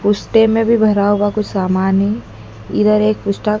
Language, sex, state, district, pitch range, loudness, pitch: Hindi, female, Madhya Pradesh, Dhar, 190-215 Hz, -15 LUFS, 205 Hz